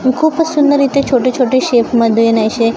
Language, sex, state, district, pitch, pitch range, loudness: Marathi, female, Maharashtra, Gondia, 255 Hz, 230-280 Hz, -12 LUFS